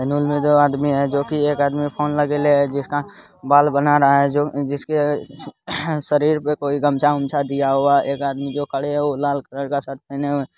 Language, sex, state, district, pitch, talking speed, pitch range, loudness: Hindi, male, Bihar, Supaul, 145 Hz, 225 wpm, 140-145 Hz, -19 LUFS